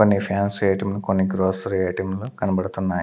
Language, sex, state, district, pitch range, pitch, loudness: Telugu, male, Andhra Pradesh, Sri Satya Sai, 95-100 Hz, 95 Hz, -23 LUFS